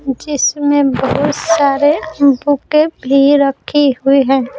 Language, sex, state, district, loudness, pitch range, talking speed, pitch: Hindi, female, Bihar, Patna, -13 LUFS, 275-290 Hz, 115 wpm, 285 Hz